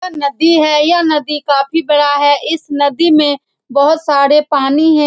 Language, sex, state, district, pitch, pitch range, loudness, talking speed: Hindi, female, Bihar, Saran, 295 Hz, 285-320 Hz, -12 LUFS, 180 wpm